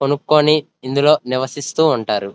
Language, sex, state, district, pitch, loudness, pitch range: Telugu, male, Andhra Pradesh, Krishna, 145 Hz, -16 LUFS, 130-150 Hz